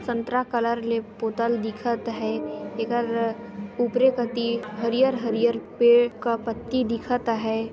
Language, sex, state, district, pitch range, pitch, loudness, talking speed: Chhattisgarhi, female, Chhattisgarh, Sarguja, 225-240 Hz, 235 Hz, -24 LUFS, 125 wpm